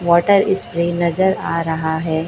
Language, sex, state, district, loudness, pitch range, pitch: Hindi, female, Chhattisgarh, Raipur, -17 LUFS, 160-175 Hz, 170 Hz